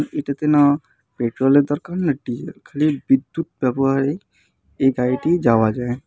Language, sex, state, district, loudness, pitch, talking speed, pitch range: Bengali, male, West Bengal, Alipurduar, -19 LUFS, 140 Hz, 140 wpm, 125-150 Hz